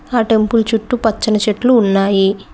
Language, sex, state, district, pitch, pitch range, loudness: Telugu, female, Telangana, Mahabubabad, 220 Hz, 210-230 Hz, -14 LUFS